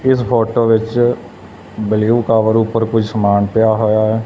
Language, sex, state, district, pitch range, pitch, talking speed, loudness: Punjabi, male, Punjab, Fazilka, 110-115 Hz, 110 Hz, 155 wpm, -14 LUFS